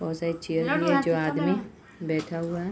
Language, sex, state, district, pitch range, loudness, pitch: Hindi, female, Uttar Pradesh, Hamirpur, 160-170 Hz, -27 LUFS, 165 Hz